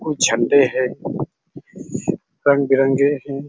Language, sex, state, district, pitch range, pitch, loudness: Hindi, male, Chhattisgarh, Raigarh, 135-140 Hz, 140 Hz, -18 LUFS